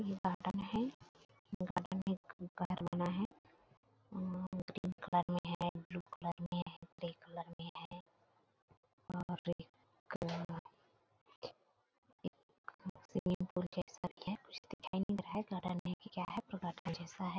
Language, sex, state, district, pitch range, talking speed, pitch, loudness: Hindi, female, Chhattisgarh, Bilaspur, 175-190 Hz, 155 wpm, 180 Hz, -43 LUFS